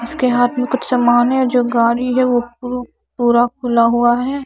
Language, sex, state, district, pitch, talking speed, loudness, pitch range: Hindi, female, Bihar, Katihar, 245 Hz, 200 wpm, -15 LUFS, 240-250 Hz